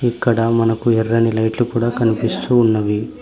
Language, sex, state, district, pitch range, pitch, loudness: Telugu, male, Telangana, Mahabubabad, 110-120 Hz, 115 Hz, -17 LUFS